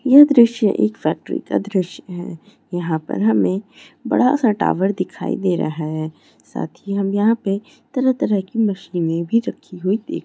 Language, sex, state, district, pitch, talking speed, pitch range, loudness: Hindi, female, Chhattisgarh, Raigarh, 195 Hz, 175 wpm, 175-225 Hz, -19 LUFS